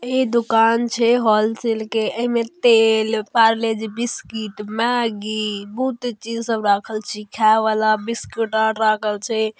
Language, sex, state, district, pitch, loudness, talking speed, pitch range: Maithili, female, Bihar, Darbhanga, 225 Hz, -19 LUFS, 125 wpm, 215-235 Hz